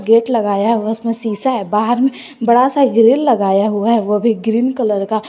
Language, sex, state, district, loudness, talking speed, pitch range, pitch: Hindi, female, Jharkhand, Garhwa, -15 LUFS, 240 wpm, 210-245 Hz, 230 Hz